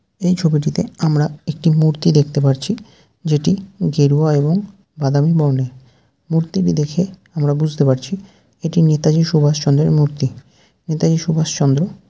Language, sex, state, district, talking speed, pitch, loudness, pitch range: Bengali, male, West Bengal, Jalpaiguri, 115 wpm, 155 Hz, -17 LUFS, 145-175 Hz